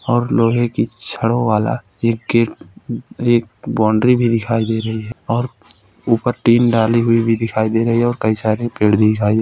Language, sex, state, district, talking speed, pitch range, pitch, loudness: Hindi, male, Uttar Pradesh, Hamirpur, 225 wpm, 110-120 Hz, 115 Hz, -16 LUFS